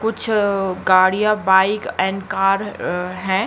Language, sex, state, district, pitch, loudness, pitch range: Hindi, female, Uttar Pradesh, Hamirpur, 195 Hz, -18 LUFS, 190-210 Hz